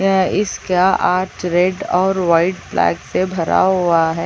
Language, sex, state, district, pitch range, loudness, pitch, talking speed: Hindi, female, Chhattisgarh, Sarguja, 175-190 Hz, -16 LUFS, 180 Hz, 155 wpm